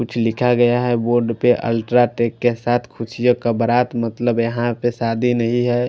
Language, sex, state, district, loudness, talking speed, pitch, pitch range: Hindi, male, Punjab, Fazilka, -18 LUFS, 195 wpm, 120 Hz, 115-120 Hz